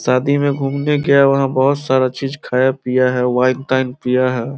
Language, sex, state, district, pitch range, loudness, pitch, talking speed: Hindi, male, Bihar, Samastipur, 125-140 Hz, -16 LUFS, 130 Hz, 210 wpm